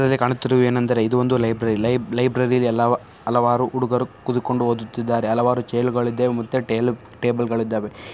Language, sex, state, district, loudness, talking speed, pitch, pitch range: Kannada, male, Karnataka, Shimoga, -21 LUFS, 155 wpm, 120 Hz, 115-125 Hz